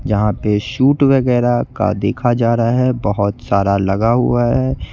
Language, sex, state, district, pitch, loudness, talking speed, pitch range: Hindi, male, Bihar, West Champaran, 120 Hz, -15 LUFS, 170 wpm, 100-125 Hz